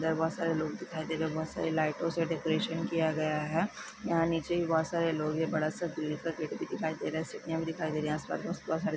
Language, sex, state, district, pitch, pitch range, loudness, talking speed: Hindi, female, Chhattisgarh, Korba, 160 Hz, 155-165 Hz, -33 LUFS, 280 wpm